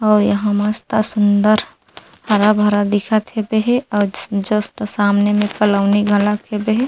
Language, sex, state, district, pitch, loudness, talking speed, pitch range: Chhattisgarhi, female, Chhattisgarh, Rajnandgaon, 210 Hz, -16 LUFS, 140 wpm, 205-215 Hz